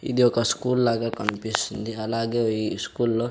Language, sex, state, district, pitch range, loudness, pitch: Telugu, male, Andhra Pradesh, Sri Satya Sai, 110-120 Hz, -24 LUFS, 115 Hz